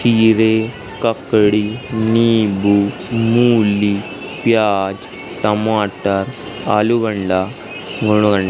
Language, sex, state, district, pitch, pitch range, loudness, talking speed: Hindi, male, Madhya Pradesh, Katni, 105 Hz, 100-115 Hz, -16 LUFS, 55 wpm